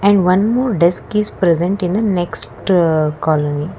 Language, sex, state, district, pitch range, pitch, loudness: English, female, Karnataka, Bangalore, 165-200 Hz, 180 Hz, -16 LUFS